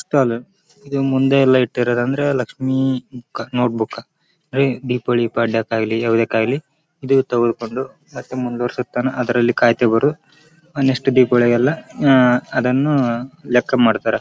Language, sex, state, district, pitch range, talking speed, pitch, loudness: Kannada, male, Karnataka, Raichur, 120-135 Hz, 40 wpm, 125 Hz, -18 LUFS